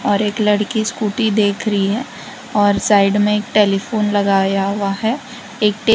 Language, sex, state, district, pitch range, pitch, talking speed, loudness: Hindi, female, Gujarat, Valsad, 200-220 Hz, 210 Hz, 170 wpm, -17 LUFS